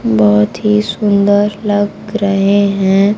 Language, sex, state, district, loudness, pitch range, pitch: Hindi, female, Bihar, Kaimur, -12 LUFS, 195-210 Hz, 205 Hz